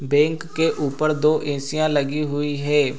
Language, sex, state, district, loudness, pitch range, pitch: Hindi, male, Bihar, Supaul, -21 LUFS, 145-155 Hz, 150 Hz